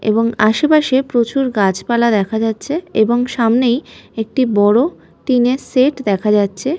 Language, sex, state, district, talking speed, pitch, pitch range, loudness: Bengali, female, West Bengal, Malda, 135 wpm, 235 Hz, 215-260 Hz, -15 LUFS